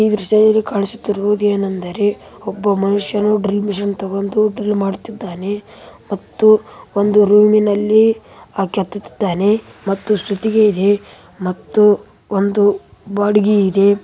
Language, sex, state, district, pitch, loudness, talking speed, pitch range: Kannada, female, Karnataka, Raichur, 205 Hz, -16 LUFS, 95 wpm, 200-210 Hz